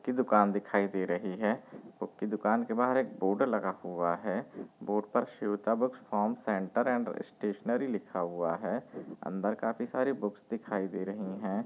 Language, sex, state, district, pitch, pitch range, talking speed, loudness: Hindi, female, Bihar, Muzaffarpur, 105 Hz, 95-120 Hz, 180 wpm, -32 LUFS